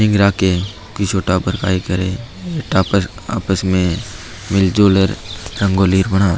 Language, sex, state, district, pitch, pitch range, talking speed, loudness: Marwari, male, Rajasthan, Nagaur, 95 Hz, 95-105 Hz, 120 wpm, -17 LUFS